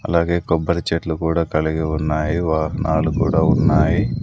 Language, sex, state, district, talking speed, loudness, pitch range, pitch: Telugu, male, Andhra Pradesh, Sri Satya Sai, 130 wpm, -19 LUFS, 80-85 Hz, 80 Hz